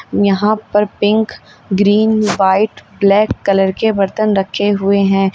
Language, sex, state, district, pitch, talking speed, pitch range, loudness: Hindi, female, Uttar Pradesh, Lalitpur, 205 Hz, 135 wpm, 195-215 Hz, -14 LUFS